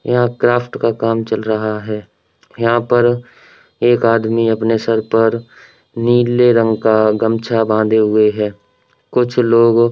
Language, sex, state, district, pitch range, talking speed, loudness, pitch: Hindi, male, Uttar Pradesh, Varanasi, 110-120 Hz, 145 wpm, -14 LUFS, 115 Hz